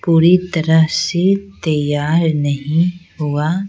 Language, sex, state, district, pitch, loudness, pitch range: Hindi, female, Bihar, Patna, 165 Hz, -16 LUFS, 150-175 Hz